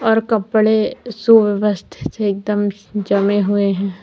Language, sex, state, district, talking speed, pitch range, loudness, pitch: Hindi, female, Uttar Pradesh, Lalitpur, 105 wpm, 200-220 Hz, -17 LUFS, 205 Hz